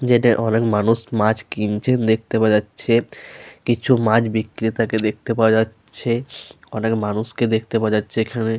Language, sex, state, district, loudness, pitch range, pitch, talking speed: Bengali, male, Jharkhand, Sahebganj, -19 LUFS, 110-115 Hz, 110 Hz, 145 wpm